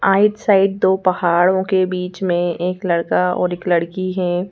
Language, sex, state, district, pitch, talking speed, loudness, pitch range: Hindi, female, Madhya Pradesh, Bhopal, 185 Hz, 175 wpm, -17 LUFS, 175-190 Hz